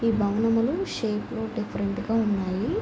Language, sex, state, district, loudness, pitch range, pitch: Telugu, female, Andhra Pradesh, Guntur, -26 LUFS, 205-230 Hz, 220 Hz